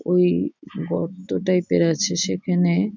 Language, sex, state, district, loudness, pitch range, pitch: Bengali, female, West Bengal, Jhargram, -22 LUFS, 175-200 Hz, 180 Hz